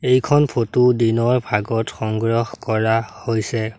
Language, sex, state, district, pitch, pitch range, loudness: Assamese, male, Assam, Sonitpur, 115 Hz, 110-125 Hz, -19 LUFS